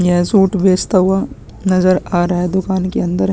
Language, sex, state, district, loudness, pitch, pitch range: Hindi, male, Chhattisgarh, Sukma, -15 LUFS, 185 Hz, 175-190 Hz